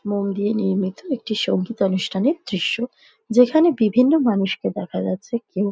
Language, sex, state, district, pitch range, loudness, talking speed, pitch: Bengali, female, West Bengal, Dakshin Dinajpur, 195-245 Hz, -20 LUFS, 125 wpm, 210 Hz